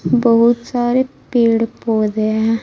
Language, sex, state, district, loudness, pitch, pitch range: Hindi, female, Uttar Pradesh, Saharanpur, -16 LUFS, 230 Hz, 225-240 Hz